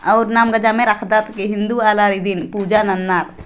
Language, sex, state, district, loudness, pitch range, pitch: Sadri, female, Chhattisgarh, Jashpur, -16 LUFS, 200-220 Hz, 210 Hz